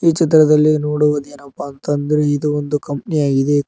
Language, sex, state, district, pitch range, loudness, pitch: Kannada, male, Karnataka, Koppal, 145-150 Hz, -16 LUFS, 150 Hz